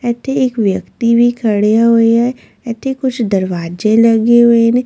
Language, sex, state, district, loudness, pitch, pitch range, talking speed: Punjabi, female, Delhi, New Delhi, -12 LUFS, 230 Hz, 220-240 Hz, 160 wpm